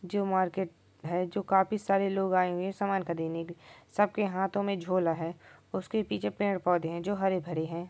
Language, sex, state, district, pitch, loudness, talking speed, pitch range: Maithili, male, Bihar, Supaul, 185 Hz, -31 LUFS, 215 wpm, 170-195 Hz